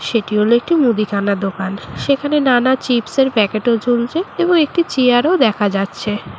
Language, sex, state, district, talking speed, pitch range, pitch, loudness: Bengali, female, West Bengal, Purulia, 180 wpm, 210-275 Hz, 240 Hz, -16 LUFS